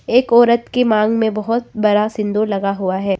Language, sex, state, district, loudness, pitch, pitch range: Hindi, female, Arunachal Pradesh, Papum Pare, -16 LUFS, 215 Hz, 205-235 Hz